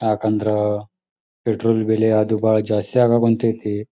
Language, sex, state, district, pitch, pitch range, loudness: Kannada, male, Karnataka, Dharwad, 110 Hz, 105-115 Hz, -19 LUFS